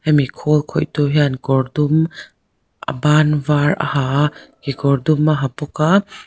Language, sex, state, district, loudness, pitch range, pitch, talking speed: Mizo, female, Mizoram, Aizawl, -17 LUFS, 140-155 Hz, 150 Hz, 180 wpm